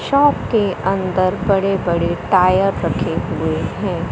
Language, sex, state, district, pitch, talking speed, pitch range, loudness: Hindi, male, Madhya Pradesh, Katni, 195 Hz, 130 wpm, 185-195 Hz, -17 LUFS